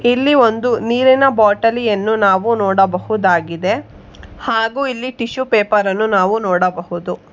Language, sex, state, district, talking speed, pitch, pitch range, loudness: Kannada, female, Karnataka, Bangalore, 100 wpm, 215 Hz, 185-235 Hz, -15 LUFS